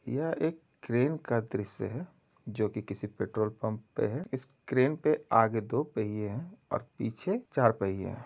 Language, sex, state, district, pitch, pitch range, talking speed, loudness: Hindi, male, Uttar Pradesh, Jalaun, 120 Hz, 110-150 Hz, 175 wpm, -32 LUFS